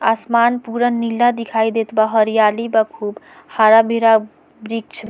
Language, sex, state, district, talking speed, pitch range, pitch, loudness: Bhojpuri, female, Bihar, Muzaffarpur, 140 wpm, 220-230 Hz, 225 Hz, -16 LUFS